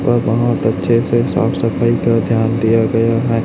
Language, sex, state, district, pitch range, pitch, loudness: Hindi, male, Chhattisgarh, Raipur, 115-120 Hz, 115 Hz, -15 LUFS